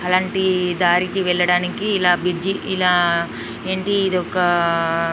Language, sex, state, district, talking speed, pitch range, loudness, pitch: Telugu, female, Telangana, Nalgonda, 95 wpm, 175-190 Hz, -19 LUFS, 180 Hz